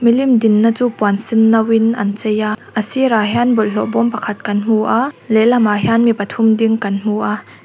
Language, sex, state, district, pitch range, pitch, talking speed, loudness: Mizo, female, Mizoram, Aizawl, 215-235 Hz, 225 Hz, 205 wpm, -15 LUFS